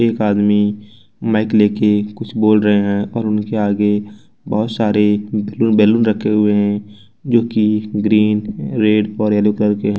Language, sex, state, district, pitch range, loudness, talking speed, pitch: Hindi, male, Jharkhand, Ranchi, 105-110 Hz, -16 LUFS, 150 wpm, 105 Hz